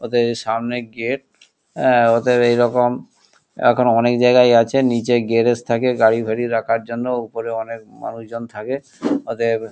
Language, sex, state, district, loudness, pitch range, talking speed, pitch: Bengali, male, West Bengal, Kolkata, -18 LUFS, 115-120 Hz, 125 wpm, 120 Hz